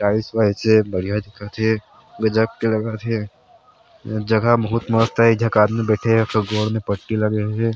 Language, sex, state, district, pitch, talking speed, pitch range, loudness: Chhattisgarhi, male, Chhattisgarh, Sarguja, 110 Hz, 185 wpm, 105-115 Hz, -19 LUFS